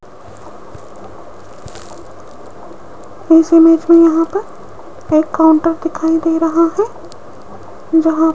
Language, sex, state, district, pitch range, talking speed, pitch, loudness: Hindi, female, Rajasthan, Jaipur, 320-330 Hz, 95 wpm, 325 Hz, -12 LUFS